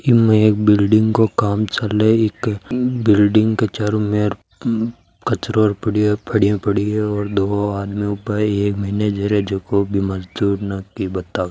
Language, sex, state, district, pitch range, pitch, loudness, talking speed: Marwari, male, Rajasthan, Nagaur, 100-110 Hz, 105 Hz, -18 LUFS, 155 wpm